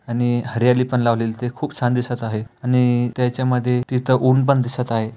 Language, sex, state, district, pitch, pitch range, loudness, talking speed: Marathi, male, Maharashtra, Aurangabad, 125 Hz, 120-125 Hz, -19 LUFS, 195 wpm